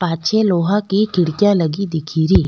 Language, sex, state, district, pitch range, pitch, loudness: Rajasthani, female, Rajasthan, Nagaur, 165-205 Hz, 180 Hz, -17 LUFS